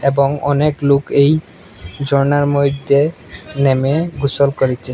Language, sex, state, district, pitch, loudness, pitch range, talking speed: Bengali, male, Assam, Hailakandi, 140 Hz, -15 LUFS, 140-145 Hz, 110 wpm